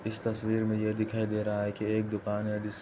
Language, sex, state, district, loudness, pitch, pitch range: Hindi, male, Uttar Pradesh, Etah, -31 LUFS, 110 Hz, 105-110 Hz